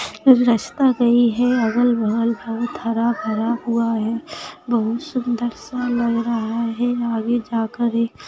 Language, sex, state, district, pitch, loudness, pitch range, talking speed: Hindi, female, Bihar, Begusarai, 235 Hz, -20 LUFS, 230-245 Hz, 160 wpm